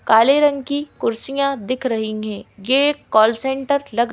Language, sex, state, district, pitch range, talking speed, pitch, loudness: Hindi, female, Madhya Pradesh, Bhopal, 220-280 Hz, 175 wpm, 260 Hz, -18 LUFS